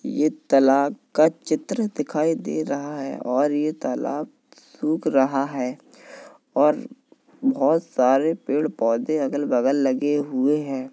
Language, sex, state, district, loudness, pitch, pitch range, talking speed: Hindi, male, Uttar Pradesh, Jalaun, -22 LUFS, 150 Hz, 135-170 Hz, 135 wpm